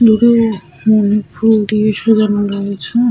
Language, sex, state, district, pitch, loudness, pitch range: Bengali, female, Jharkhand, Sahebganj, 215 Hz, -13 LUFS, 205-225 Hz